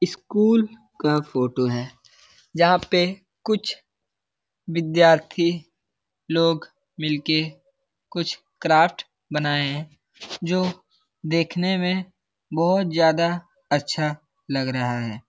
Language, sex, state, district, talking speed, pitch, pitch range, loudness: Hindi, male, Bihar, Lakhisarai, 95 wpm, 165 Hz, 150-185 Hz, -22 LUFS